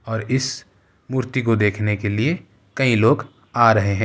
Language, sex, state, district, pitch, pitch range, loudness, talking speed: Hindi, male, Uttar Pradesh, Ghazipur, 115 Hz, 105-130 Hz, -20 LUFS, 180 wpm